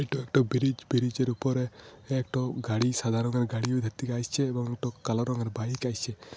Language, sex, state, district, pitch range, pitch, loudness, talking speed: Bengali, male, Jharkhand, Jamtara, 115-130 Hz, 125 Hz, -29 LUFS, 200 wpm